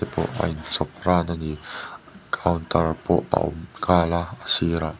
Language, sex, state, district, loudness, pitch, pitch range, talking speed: Mizo, male, Mizoram, Aizawl, -23 LUFS, 85 Hz, 80-85 Hz, 155 wpm